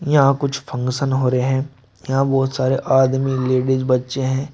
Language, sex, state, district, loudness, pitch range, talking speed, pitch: Hindi, male, Uttar Pradesh, Shamli, -19 LUFS, 130-135 Hz, 170 wpm, 130 Hz